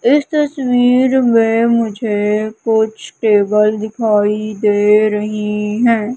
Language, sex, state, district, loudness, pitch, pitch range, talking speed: Hindi, female, Madhya Pradesh, Umaria, -14 LUFS, 220 Hz, 210-235 Hz, 95 wpm